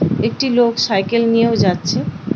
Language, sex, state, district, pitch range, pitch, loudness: Bengali, female, West Bengal, Paschim Medinipur, 185-235 Hz, 230 Hz, -16 LUFS